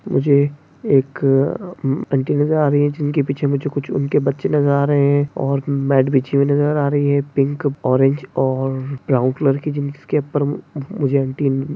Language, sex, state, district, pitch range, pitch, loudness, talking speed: Hindi, male, Maharashtra, Solapur, 135-145 Hz, 140 Hz, -18 LUFS, 170 wpm